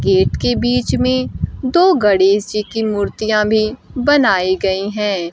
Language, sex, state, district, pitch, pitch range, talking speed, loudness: Hindi, female, Bihar, Kaimur, 200 Hz, 130-215 Hz, 145 wpm, -15 LUFS